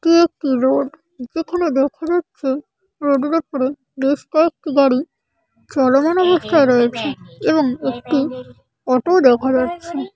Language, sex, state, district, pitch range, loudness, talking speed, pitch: Bengali, female, West Bengal, Kolkata, 260-330 Hz, -17 LUFS, 120 wpm, 280 Hz